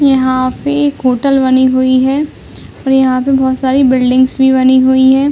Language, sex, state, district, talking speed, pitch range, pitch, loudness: Hindi, female, Uttar Pradesh, Hamirpur, 190 wpm, 260-270 Hz, 260 Hz, -10 LUFS